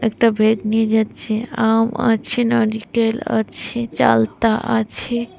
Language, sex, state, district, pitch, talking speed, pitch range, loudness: Bengali, female, Tripura, West Tripura, 225 Hz, 110 wpm, 220-235 Hz, -18 LUFS